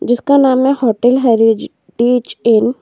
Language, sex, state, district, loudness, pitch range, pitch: Hindi, female, Chhattisgarh, Korba, -12 LUFS, 230-260 Hz, 245 Hz